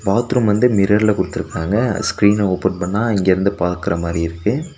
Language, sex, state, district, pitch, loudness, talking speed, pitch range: Tamil, male, Tamil Nadu, Nilgiris, 100 Hz, -17 LUFS, 140 wpm, 95-105 Hz